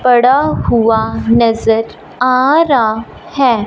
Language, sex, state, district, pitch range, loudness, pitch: Hindi, female, Punjab, Fazilka, 225-265 Hz, -12 LUFS, 240 Hz